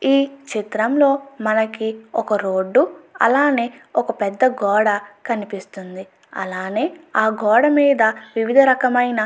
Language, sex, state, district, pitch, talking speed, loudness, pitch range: Telugu, female, Andhra Pradesh, Anantapur, 225 Hz, 105 wpm, -18 LUFS, 210-270 Hz